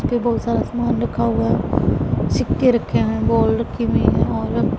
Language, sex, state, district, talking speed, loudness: Hindi, female, Punjab, Pathankot, 190 wpm, -19 LUFS